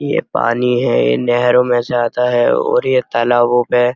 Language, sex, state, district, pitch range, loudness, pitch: Hindi, male, Uttar Pradesh, Muzaffarnagar, 120-125 Hz, -14 LUFS, 120 Hz